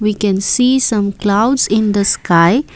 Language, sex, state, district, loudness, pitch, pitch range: English, female, Assam, Kamrup Metropolitan, -13 LUFS, 210 Hz, 200-230 Hz